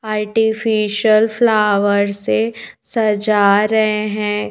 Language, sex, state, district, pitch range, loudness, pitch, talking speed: Hindi, female, Madhya Pradesh, Bhopal, 205-220 Hz, -16 LUFS, 210 Hz, 80 wpm